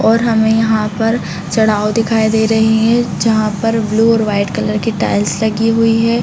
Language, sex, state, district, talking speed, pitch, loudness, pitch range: Hindi, female, Chhattisgarh, Bilaspur, 195 wpm, 220 Hz, -14 LUFS, 215-225 Hz